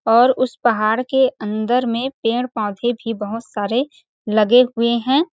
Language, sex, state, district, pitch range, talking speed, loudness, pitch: Hindi, female, Chhattisgarh, Balrampur, 220-255 Hz, 170 wpm, -18 LUFS, 235 Hz